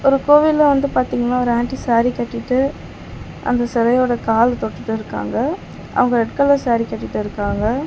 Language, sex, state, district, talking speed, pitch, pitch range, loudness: Tamil, female, Tamil Nadu, Chennai, 145 wpm, 245 Hz, 235-270 Hz, -17 LUFS